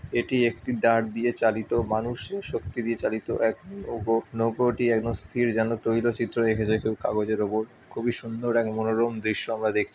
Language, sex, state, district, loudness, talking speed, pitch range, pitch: Bengali, male, West Bengal, Dakshin Dinajpur, -26 LUFS, 170 wpm, 110-120 Hz, 115 Hz